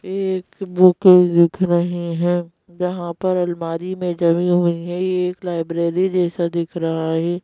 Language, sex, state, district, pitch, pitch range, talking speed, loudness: Hindi, female, Madhya Pradesh, Bhopal, 175 Hz, 170-180 Hz, 145 wpm, -18 LUFS